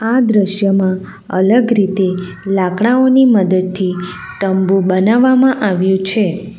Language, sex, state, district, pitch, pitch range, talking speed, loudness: Gujarati, female, Gujarat, Valsad, 195 Hz, 185-225 Hz, 90 wpm, -13 LUFS